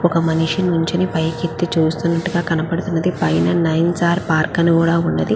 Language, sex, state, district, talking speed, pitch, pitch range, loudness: Telugu, female, Andhra Pradesh, Visakhapatnam, 135 wpm, 165 Hz, 160-170 Hz, -17 LUFS